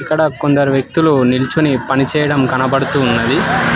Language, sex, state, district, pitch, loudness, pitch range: Telugu, male, Telangana, Hyderabad, 135 Hz, -14 LUFS, 130-150 Hz